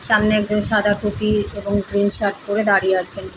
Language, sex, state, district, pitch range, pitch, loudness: Bengali, female, West Bengal, Paschim Medinipur, 200-210 Hz, 205 Hz, -17 LUFS